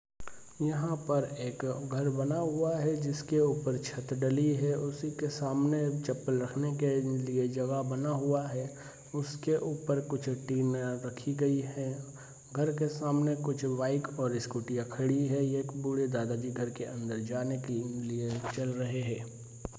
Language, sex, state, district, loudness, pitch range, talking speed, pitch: Hindi, male, Bihar, Saharsa, -33 LUFS, 125-145 Hz, 160 wpm, 135 Hz